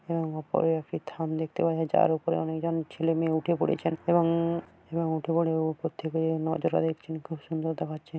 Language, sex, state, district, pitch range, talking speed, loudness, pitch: Bengali, female, West Bengal, Paschim Medinipur, 160-165 Hz, 200 wpm, -29 LUFS, 160 Hz